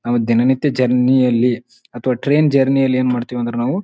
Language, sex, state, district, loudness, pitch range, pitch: Kannada, male, Karnataka, Bijapur, -16 LUFS, 120-130 Hz, 125 Hz